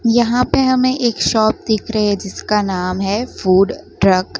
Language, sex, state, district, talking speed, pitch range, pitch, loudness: Hindi, female, Gujarat, Gandhinagar, 190 wpm, 195-240 Hz, 215 Hz, -16 LUFS